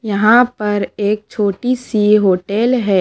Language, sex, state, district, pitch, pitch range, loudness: Hindi, female, Maharashtra, Mumbai Suburban, 210 Hz, 205-240 Hz, -15 LUFS